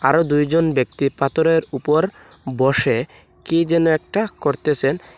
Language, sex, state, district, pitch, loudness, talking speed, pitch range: Bengali, male, Assam, Hailakandi, 150 Hz, -19 LUFS, 115 wpm, 140-165 Hz